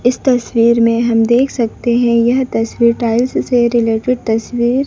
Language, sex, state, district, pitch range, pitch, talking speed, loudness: Hindi, female, Madhya Pradesh, Dhar, 230-245 Hz, 235 Hz, 170 wpm, -14 LUFS